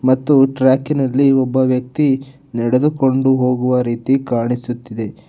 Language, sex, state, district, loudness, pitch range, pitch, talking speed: Kannada, male, Karnataka, Bangalore, -16 LUFS, 125-135 Hz, 130 Hz, 90 wpm